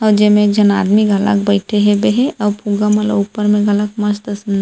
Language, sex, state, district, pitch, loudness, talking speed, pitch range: Chhattisgarhi, female, Chhattisgarh, Rajnandgaon, 210 Hz, -14 LUFS, 260 wpm, 205-210 Hz